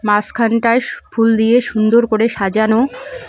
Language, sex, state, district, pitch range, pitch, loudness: Bengali, female, West Bengal, Cooch Behar, 220-235 Hz, 225 Hz, -14 LUFS